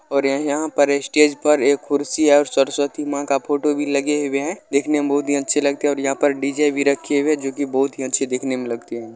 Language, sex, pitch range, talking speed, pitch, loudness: Maithili, male, 140-145 Hz, 270 wpm, 140 Hz, -19 LUFS